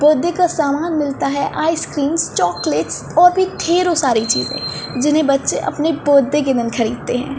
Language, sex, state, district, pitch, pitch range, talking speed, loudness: Hindi, female, Chhattisgarh, Balrampur, 295 Hz, 275-325 Hz, 170 wpm, -17 LUFS